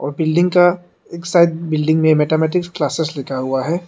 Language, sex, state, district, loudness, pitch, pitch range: Hindi, male, Arunachal Pradesh, Lower Dibang Valley, -16 LUFS, 160 Hz, 150-175 Hz